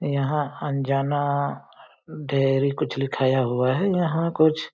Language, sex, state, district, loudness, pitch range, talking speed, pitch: Hindi, male, Chhattisgarh, Balrampur, -23 LUFS, 135-155 Hz, 125 wpm, 140 Hz